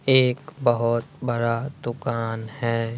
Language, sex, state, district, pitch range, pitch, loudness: Hindi, male, Bihar, West Champaran, 115-130 Hz, 120 Hz, -24 LUFS